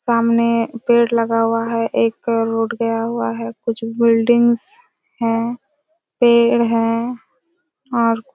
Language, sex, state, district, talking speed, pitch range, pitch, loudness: Hindi, female, Chhattisgarh, Raigarh, 115 wpm, 230-235 Hz, 230 Hz, -17 LUFS